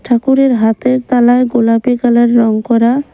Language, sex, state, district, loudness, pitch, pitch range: Bengali, female, West Bengal, Cooch Behar, -11 LUFS, 240 Hz, 235-255 Hz